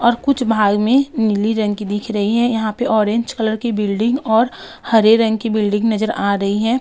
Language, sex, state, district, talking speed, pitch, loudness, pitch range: Hindi, female, Uttar Pradesh, Jalaun, 220 wpm, 220 Hz, -17 LUFS, 210-235 Hz